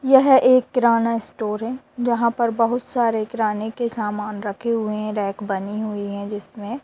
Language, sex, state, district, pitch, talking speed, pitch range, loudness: Hindi, female, Bihar, Darbhanga, 225 Hz, 175 wpm, 210-240 Hz, -21 LUFS